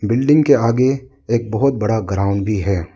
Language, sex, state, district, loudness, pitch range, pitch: Hindi, male, Arunachal Pradesh, Lower Dibang Valley, -17 LUFS, 100-130 Hz, 115 Hz